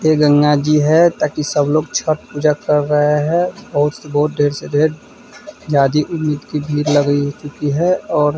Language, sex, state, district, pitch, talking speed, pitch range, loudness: Hindi, male, Bihar, Vaishali, 150 Hz, 195 wpm, 145-155 Hz, -16 LUFS